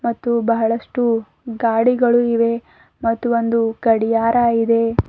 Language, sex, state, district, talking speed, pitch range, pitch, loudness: Kannada, female, Karnataka, Bidar, 95 wpm, 230-235 Hz, 230 Hz, -18 LUFS